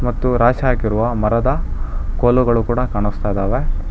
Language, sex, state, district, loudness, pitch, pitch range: Kannada, male, Karnataka, Bangalore, -18 LUFS, 120 Hz, 105-125 Hz